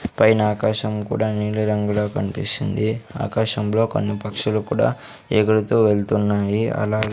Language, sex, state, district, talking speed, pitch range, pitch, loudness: Telugu, male, Andhra Pradesh, Sri Satya Sai, 110 wpm, 105-110 Hz, 105 Hz, -20 LUFS